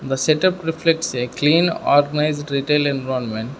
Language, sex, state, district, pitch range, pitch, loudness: English, male, Arunachal Pradesh, Lower Dibang Valley, 135-160 Hz, 145 Hz, -19 LUFS